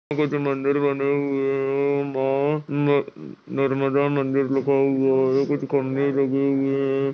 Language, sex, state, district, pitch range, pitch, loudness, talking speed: Hindi, male, Chhattisgarh, Balrampur, 135-140 Hz, 140 Hz, -22 LUFS, 135 wpm